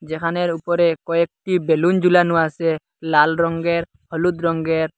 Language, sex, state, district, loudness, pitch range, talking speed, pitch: Bengali, male, Assam, Hailakandi, -19 LUFS, 160-175 Hz, 120 wpm, 165 Hz